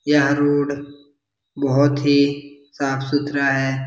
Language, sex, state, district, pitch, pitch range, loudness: Hindi, male, Bihar, Jahanabad, 145 Hz, 135-145 Hz, -19 LUFS